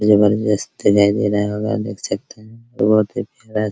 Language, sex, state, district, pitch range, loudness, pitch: Hindi, male, Bihar, Araria, 100-110 Hz, -18 LUFS, 105 Hz